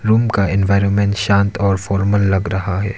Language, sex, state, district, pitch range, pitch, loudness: Hindi, male, Arunachal Pradesh, Lower Dibang Valley, 95-100 Hz, 100 Hz, -16 LUFS